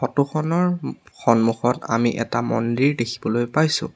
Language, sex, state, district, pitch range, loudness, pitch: Assamese, male, Assam, Sonitpur, 115-150 Hz, -21 LUFS, 120 Hz